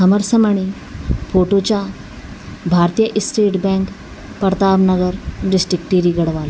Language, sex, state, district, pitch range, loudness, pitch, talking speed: Garhwali, female, Uttarakhand, Tehri Garhwal, 175-200 Hz, -16 LUFS, 190 Hz, 110 wpm